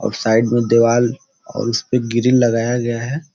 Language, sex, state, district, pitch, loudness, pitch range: Hindi, male, Uttar Pradesh, Ghazipur, 120 Hz, -17 LUFS, 115-125 Hz